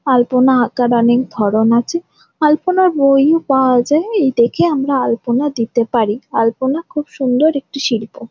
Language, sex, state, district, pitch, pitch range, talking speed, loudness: Bengali, female, West Bengal, Jhargram, 260 Hz, 235-295 Hz, 150 wpm, -15 LUFS